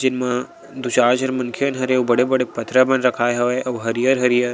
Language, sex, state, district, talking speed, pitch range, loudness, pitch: Chhattisgarhi, male, Chhattisgarh, Sarguja, 210 wpm, 120-130 Hz, -19 LUFS, 125 Hz